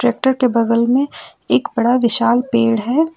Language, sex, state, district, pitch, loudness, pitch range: Hindi, female, Jharkhand, Ranchi, 240 Hz, -15 LUFS, 230-255 Hz